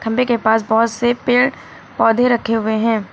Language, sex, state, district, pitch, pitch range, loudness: Hindi, female, Uttar Pradesh, Lucknow, 230 Hz, 225-245 Hz, -16 LUFS